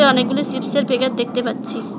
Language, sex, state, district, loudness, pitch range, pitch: Bengali, male, West Bengal, Alipurduar, -19 LUFS, 245-265 Hz, 255 Hz